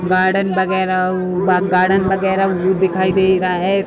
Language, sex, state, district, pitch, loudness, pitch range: Hindi, female, Uttar Pradesh, Budaun, 185 Hz, -16 LUFS, 185-190 Hz